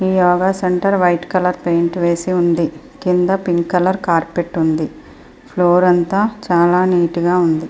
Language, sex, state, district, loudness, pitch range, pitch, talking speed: Telugu, female, Andhra Pradesh, Srikakulam, -16 LUFS, 170-185 Hz, 180 Hz, 150 wpm